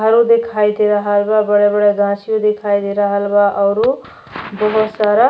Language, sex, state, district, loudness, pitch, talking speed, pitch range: Bhojpuri, female, Uttar Pradesh, Deoria, -14 LUFS, 210 Hz, 160 wpm, 205-215 Hz